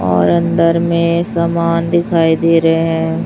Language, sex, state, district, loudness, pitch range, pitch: Hindi, male, Chhattisgarh, Raipur, -13 LUFS, 160-170 Hz, 165 Hz